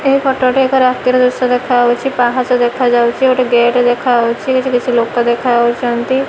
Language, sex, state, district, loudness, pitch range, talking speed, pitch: Odia, female, Odisha, Malkangiri, -13 LUFS, 240-260 Hz, 145 wpm, 250 Hz